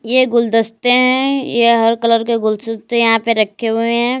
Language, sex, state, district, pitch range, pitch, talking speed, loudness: Hindi, female, Uttar Pradesh, Lalitpur, 225-240 Hz, 230 Hz, 185 wpm, -14 LUFS